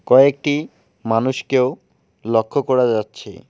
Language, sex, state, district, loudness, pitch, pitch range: Bengali, male, West Bengal, Alipurduar, -18 LUFS, 130 Hz, 115-135 Hz